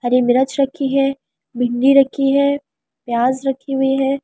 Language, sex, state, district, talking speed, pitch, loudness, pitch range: Hindi, female, Delhi, New Delhi, 170 wpm, 270 Hz, -17 LUFS, 250-275 Hz